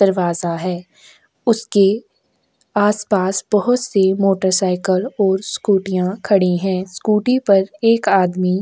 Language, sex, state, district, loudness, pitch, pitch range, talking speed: Hindi, female, Chhattisgarh, Korba, -17 LUFS, 195 Hz, 185-210 Hz, 105 wpm